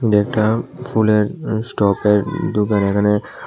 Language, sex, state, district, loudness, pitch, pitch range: Bengali, male, Tripura, West Tripura, -17 LUFS, 105 Hz, 105-110 Hz